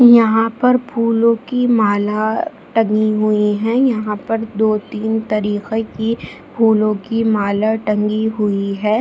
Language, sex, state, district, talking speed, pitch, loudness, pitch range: Hindi, female, Bihar, Jahanabad, 135 wpm, 220 Hz, -16 LUFS, 210-225 Hz